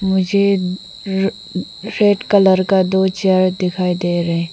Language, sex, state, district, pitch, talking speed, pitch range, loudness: Hindi, female, Mizoram, Aizawl, 190 Hz, 130 wpm, 185-195 Hz, -16 LUFS